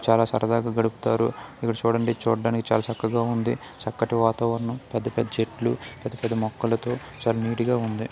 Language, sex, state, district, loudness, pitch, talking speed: Telugu, male, Telangana, Nalgonda, -25 LUFS, 115 Hz, 150 wpm